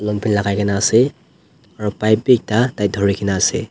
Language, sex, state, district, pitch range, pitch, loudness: Nagamese, male, Nagaland, Dimapur, 100-110 Hz, 105 Hz, -17 LUFS